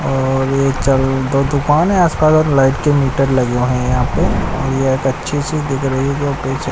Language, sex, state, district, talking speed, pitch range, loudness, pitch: Hindi, male, Odisha, Nuapada, 230 wpm, 130-140 Hz, -15 LUFS, 135 Hz